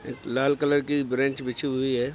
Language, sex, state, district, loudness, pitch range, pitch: Hindi, male, Bihar, Araria, -26 LUFS, 130-145 Hz, 135 Hz